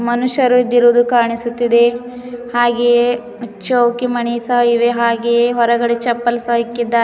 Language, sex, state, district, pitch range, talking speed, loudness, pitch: Kannada, female, Karnataka, Bidar, 235-245 Hz, 110 wpm, -14 LUFS, 240 Hz